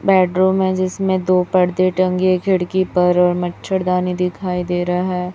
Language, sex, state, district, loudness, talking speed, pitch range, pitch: Hindi, male, Chhattisgarh, Raipur, -17 LUFS, 155 wpm, 180-185 Hz, 185 Hz